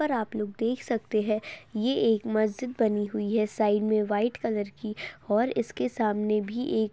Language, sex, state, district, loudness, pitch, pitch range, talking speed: Hindi, female, Uttar Pradesh, Hamirpur, -28 LUFS, 215 Hz, 210-230 Hz, 200 wpm